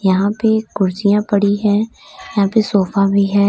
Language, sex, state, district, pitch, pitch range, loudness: Hindi, female, Uttar Pradesh, Lalitpur, 200 Hz, 200-210 Hz, -16 LUFS